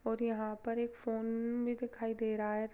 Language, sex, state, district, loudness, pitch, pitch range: Hindi, female, Chhattisgarh, Jashpur, -37 LUFS, 225 Hz, 220-235 Hz